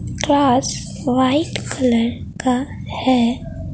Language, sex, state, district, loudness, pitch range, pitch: Hindi, female, Bihar, Katihar, -19 LUFS, 245-270 Hz, 255 Hz